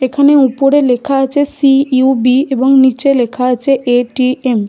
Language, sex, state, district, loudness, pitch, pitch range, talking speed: Bengali, female, West Bengal, Malda, -11 LUFS, 265 Hz, 250-275 Hz, 155 wpm